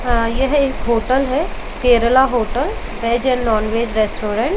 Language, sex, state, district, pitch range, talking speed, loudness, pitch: Hindi, female, Uttar Pradesh, Jalaun, 225-260 Hz, 170 wpm, -17 LUFS, 235 Hz